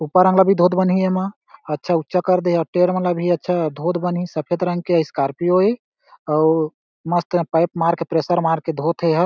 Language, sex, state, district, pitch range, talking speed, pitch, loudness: Chhattisgarhi, male, Chhattisgarh, Jashpur, 165-180 Hz, 240 wpm, 175 Hz, -19 LUFS